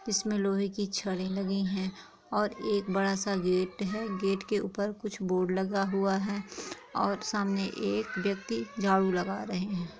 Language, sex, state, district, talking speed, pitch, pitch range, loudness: Hindi, female, Bihar, Saran, 170 wpm, 195 Hz, 190-205 Hz, -31 LUFS